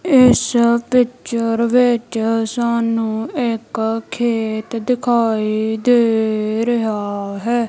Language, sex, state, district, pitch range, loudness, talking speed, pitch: Punjabi, female, Punjab, Kapurthala, 220-240 Hz, -17 LUFS, 80 wpm, 230 Hz